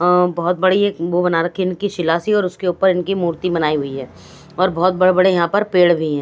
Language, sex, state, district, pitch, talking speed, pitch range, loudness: Hindi, female, Haryana, Rohtak, 180 Hz, 240 wpm, 170-185 Hz, -17 LUFS